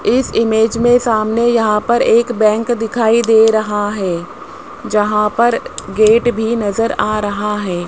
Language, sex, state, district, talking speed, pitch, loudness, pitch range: Hindi, male, Rajasthan, Jaipur, 150 wpm, 225 Hz, -14 LUFS, 210-235 Hz